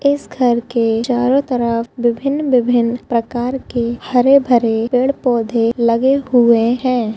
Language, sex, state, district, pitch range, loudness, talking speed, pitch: Hindi, female, Chhattisgarh, Kabirdham, 235-255 Hz, -15 LUFS, 115 wpm, 240 Hz